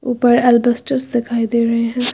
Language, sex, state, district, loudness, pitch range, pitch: Hindi, female, Uttar Pradesh, Lucknow, -15 LUFS, 235-245 Hz, 240 Hz